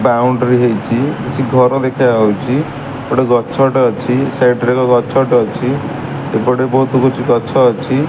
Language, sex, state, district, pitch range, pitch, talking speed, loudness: Odia, male, Odisha, Sambalpur, 125-135 Hz, 130 Hz, 150 wpm, -13 LUFS